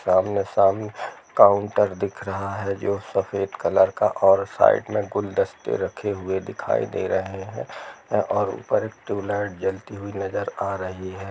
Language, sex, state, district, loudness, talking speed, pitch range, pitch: Hindi, male, Bihar, Sitamarhi, -23 LUFS, 155 wpm, 95-100 Hz, 100 Hz